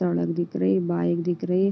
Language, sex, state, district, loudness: Hindi, female, Uttar Pradesh, Deoria, -24 LUFS